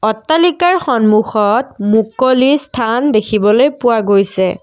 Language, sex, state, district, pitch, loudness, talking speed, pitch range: Assamese, female, Assam, Kamrup Metropolitan, 225 Hz, -12 LUFS, 90 wpm, 210-265 Hz